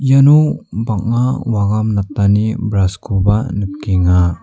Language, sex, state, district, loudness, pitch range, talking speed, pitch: Garo, male, Meghalaya, South Garo Hills, -15 LUFS, 100-115 Hz, 95 wpm, 105 Hz